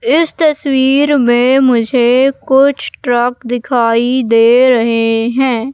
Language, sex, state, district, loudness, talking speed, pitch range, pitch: Hindi, female, Madhya Pradesh, Katni, -11 LUFS, 105 wpm, 240-270 Hz, 250 Hz